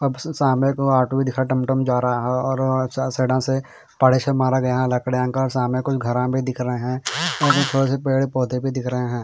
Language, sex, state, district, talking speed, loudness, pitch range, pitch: Hindi, male, Bihar, Katihar, 210 wpm, -20 LUFS, 125-135 Hz, 130 Hz